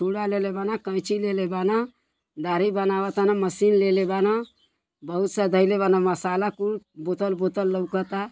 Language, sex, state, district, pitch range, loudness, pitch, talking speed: Bhojpuri, female, Uttar Pradesh, Deoria, 190-205 Hz, -24 LUFS, 195 Hz, 150 wpm